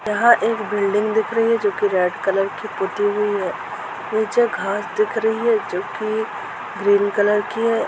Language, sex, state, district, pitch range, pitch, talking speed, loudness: Hindi, female, Jharkhand, Jamtara, 200-225 Hz, 210 Hz, 190 wpm, -20 LUFS